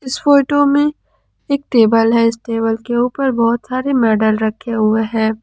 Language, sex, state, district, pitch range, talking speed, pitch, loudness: Hindi, female, Jharkhand, Ranchi, 225-270 Hz, 175 wpm, 230 Hz, -15 LUFS